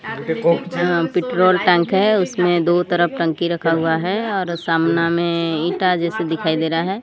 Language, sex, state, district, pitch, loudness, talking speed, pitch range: Hindi, female, Odisha, Sambalpur, 170 Hz, -18 LUFS, 170 wpm, 165-180 Hz